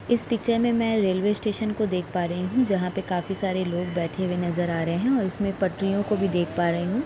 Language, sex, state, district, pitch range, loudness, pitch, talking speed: Hindi, female, Uttar Pradesh, Etah, 175-215 Hz, -25 LUFS, 195 Hz, 270 wpm